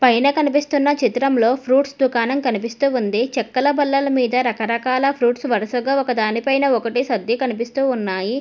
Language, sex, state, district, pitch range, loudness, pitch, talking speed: Telugu, female, Telangana, Hyderabad, 235-275 Hz, -19 LUFS, 255 Hz, 145 wpm